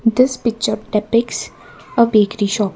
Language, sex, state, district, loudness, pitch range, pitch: English, female, Karnataka, Bangalore, -17 LUFS, 210-230 Hz, 220 Hz